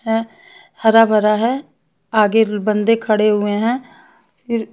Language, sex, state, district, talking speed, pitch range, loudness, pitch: Hindi, female, Haryana, Charkhi Dadri, 125 wpm, 215-235 Hz, -16 LUFS, 225 Hz